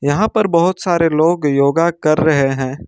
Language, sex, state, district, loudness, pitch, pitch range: Hindi, male, Jharkhand, Ranchi, -15 LUFS, 160 Hz, 140-175 Hz